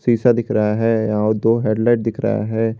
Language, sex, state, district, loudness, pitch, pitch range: Hindi, male, Jharkhand, Garhwa, -18 LUFS, 115 Hz, 110-120 Hz